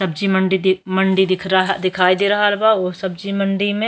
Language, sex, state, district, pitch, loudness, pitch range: Bhojpuri, female, Uttar Pradesh, Ghazipur, 190 Hz, -17 LUFS, 185-200 Hz